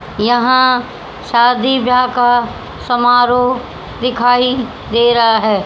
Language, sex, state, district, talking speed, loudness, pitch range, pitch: Hindi, female, Haryana, Jhajjar, 95 wpm, -13 LUFS, 240-250 Hz, 245 Hz